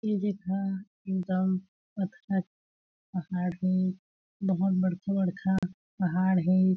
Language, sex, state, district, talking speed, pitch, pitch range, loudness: Chhattisgarhi, female, Chhattisgarh, Jashpur, 90 wpm, 185 Hz, 185-195 Hz, -30 LUFS